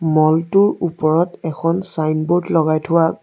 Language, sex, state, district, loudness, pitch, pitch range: Assamese, male, Assam, Sonitpur, -17 LUFS, 165 Hz, 155-175 Hz